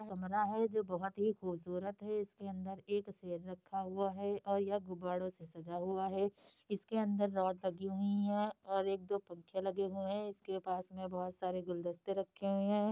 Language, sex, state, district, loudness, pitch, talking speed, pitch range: Hindi, female, Uttar Pradesh, Hamirpur, -39 LUFS, 195 Hz, 200 wpm, 185-205 Hz